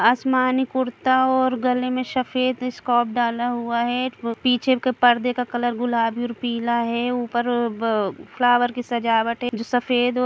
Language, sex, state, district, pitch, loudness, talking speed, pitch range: Hindi, female, Chhattisgarh, Kabirdham, 245 Hz, -21 LUFS, 175 wpm, 235-255 Hz